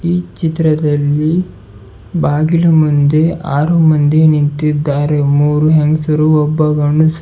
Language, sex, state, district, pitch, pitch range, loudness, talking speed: Kannada, male, Karnataka, Bidar, 150 Hz, 145-160 Hz, -12 LUFS, 100 wpm